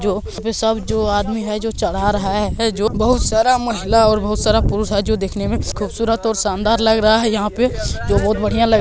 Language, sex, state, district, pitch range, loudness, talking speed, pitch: Hindi, male, Bihar, East Champaran, 210-225 Hz, -17 LUFS, 245 wpm, 220 Hz